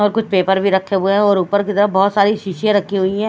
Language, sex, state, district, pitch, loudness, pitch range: Hindi, female, Chhattisgarh, Raipur, 200 Hz, -15 LUFS, 190-205 Hz